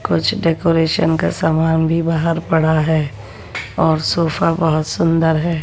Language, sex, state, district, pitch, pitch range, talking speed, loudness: Hindi, female, Bihar, West Champaran, 160 Hz, 155-165 Hz, 140 wpm, -16 LUFS